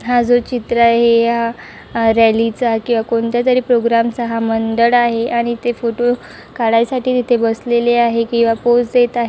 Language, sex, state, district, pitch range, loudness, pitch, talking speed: Marathi, male, Maharashtra, Chandrapur, 230-240 Hz, -15 LUFS, 235 Hz, 160 wpm